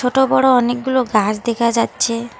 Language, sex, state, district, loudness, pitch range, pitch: Bengali, female, West Bengal, Alipurduar, -16 LUFS, 230-260 Hz, 240 Hz